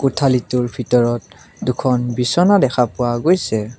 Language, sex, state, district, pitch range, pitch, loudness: Assamese, male, Assam, Kamrup Metropolitan, 120-135 Hz, 125 Hz, -17 LUFS